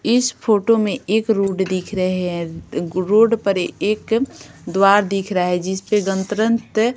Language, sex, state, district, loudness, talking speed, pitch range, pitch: Hindi, female, Bihar, West Champaran, -19 LUFS, 165 wpm, 185-225 Hz, 200 Hz